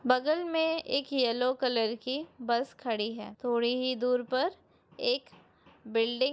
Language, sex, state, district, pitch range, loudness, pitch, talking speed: Hindi, female, Chhattisgarh, Bilaspur, 235-275 Hz, -30 LUFS, 255 Hz, 150 wpm